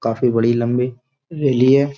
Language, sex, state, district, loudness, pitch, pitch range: Hindi, male, Uttar Pradesh, Jyotiba Phule Nagar, -17 LUFS, 125 Hz, 120-140 Hz